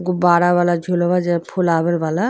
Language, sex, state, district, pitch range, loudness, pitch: Bhojpuri, female, Uttar Pradesh, Deoria, 170-180 Hz, -17 LUFS, 175 Hz